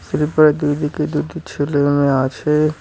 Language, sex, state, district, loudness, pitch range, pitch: Bengali, male, West Bengal, Cooch Behar, -17 LUFS, 145-150 Hz, 150 Hz